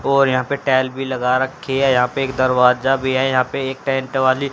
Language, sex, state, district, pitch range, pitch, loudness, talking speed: Hindi, female, Haryana, Jhajjar, 130-135 Hz, 130 Hz, -18 LUFS, 250 wpm